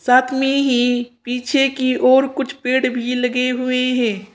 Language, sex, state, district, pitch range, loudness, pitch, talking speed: Hindi, female, Uttar Pradesh, Saharanpur, 245-260 Hz, -17 LUFS, 255 Hz, 165 wpm